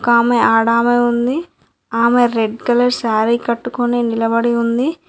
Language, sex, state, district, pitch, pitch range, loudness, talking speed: Telugu, female, Telangana, Mahabubabad, 235 Hz, 230-245 Hz, -15 LUFS, 120 wpm